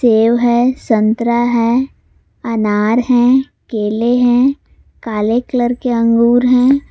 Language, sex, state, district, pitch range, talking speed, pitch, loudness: Hindi, female, Jharkhand, Garhwa, 230-250 Hz, 115 wpm, 240 Hz, -13 LUFS